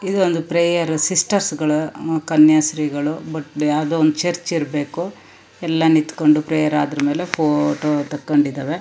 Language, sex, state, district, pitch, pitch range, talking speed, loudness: Kannada, female, Karnataka, Shimoga, 155 Hz, 150-165 Hz, 120 wpm, -18 LUFS